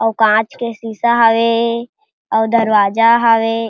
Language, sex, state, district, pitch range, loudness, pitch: Chhattisgarhi, female, Chhattisgarh, Jashpur, 225-235 Hz, -14 LUFS, 230 Hz